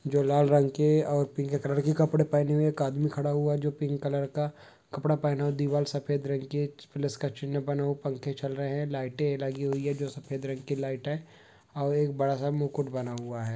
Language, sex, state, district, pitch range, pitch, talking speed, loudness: Hindi, male, West Bengal, Malda, 140-145 Hz, 145 Hz, 250 wpm, -29 LUFS